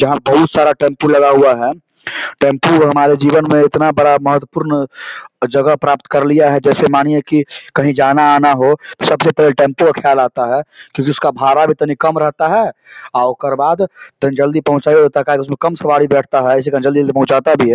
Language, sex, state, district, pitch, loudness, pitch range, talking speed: Hindi, male, Bihar, Samastipur, 145 Hz, -12 LUFS, 140-150 Hz, 190 wpm